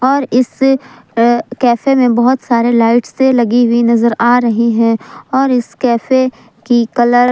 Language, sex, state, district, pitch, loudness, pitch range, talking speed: Hindi, female, Jharkhand, Palamu, 240 Hz, -12 LUFS, 235-255 Hz, 165 wpm